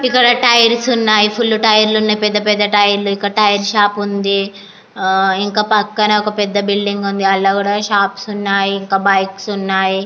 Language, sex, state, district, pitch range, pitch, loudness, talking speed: Telugu, female, Andhra Pradesh, Anantapur, 200-215 Hz, 205 Hz, -13 LUFS, 160 wpm